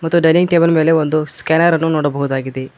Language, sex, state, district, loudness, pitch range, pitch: Kannada, male, Karnataka, Koppal, -14 LUFS, 145-165 Hz, 160 Hz